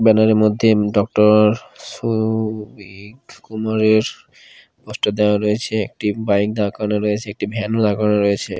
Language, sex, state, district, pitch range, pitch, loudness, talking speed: Bengali, male, Bihar, Katihar, 105-110 Hz, 105 Hz, -18 LUFS, 130 wpm